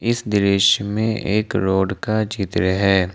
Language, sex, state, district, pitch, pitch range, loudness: Hindi, male, Jharkhand, Ranchi, 100 Hz, 95-110 Hz, -19 LUFS